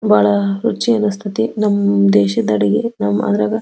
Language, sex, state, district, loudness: Kannada, female, Karnataka, Belgaum, -15 LUFS